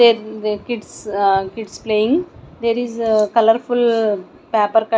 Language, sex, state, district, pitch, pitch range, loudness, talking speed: English, female, Odisha, Nuapada, 225 Hz, 210-235 Hz, -18 LUFS, 155 wpm